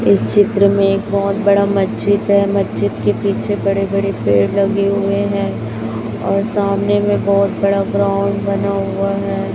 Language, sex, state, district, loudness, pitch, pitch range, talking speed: Hindi, female, Chhattisgarh, Raipur, -16 LUFS, 200 Hz, 195-200 Hz, 165 wpm